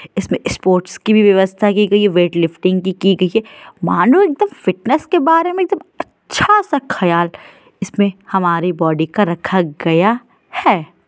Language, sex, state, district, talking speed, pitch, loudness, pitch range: Hindi, female, Uttar Pradesh, Varanasi, 160 wpm, 195 Hz, -15 LUFS, 180-245 Hz